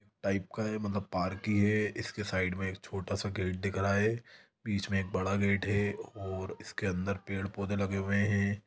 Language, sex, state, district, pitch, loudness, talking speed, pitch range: Hindi, male, Chhattisgarh, Sukma, 100 Hz, -33 LUFS, 235 wpm, 95-105 Hz